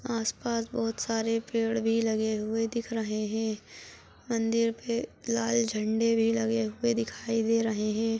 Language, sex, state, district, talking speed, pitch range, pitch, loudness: Hindi, female, Chhattisgarh, Balrampur, 160 wpm, 225-230 Hz, 225 Hz, -29 LUFS